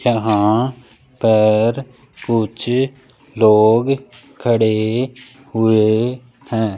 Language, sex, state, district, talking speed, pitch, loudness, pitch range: Hindi, male, Rajasthan, Jaipur, 60 wpm, 120 Hz, -16 LUFS, 110-130 Hz